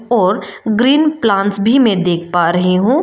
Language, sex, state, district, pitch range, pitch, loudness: Hindi, female, Arunachal Pradesh, Lower Dibang Valley, 180-250 Hz, 220 Hz, -13 LUFS